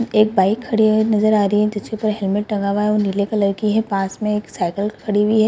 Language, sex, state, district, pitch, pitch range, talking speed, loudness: Hindi, female, Bihar, Purnia, 210 Hz, 200-215 Hz, 285 wpm, -18 LUFS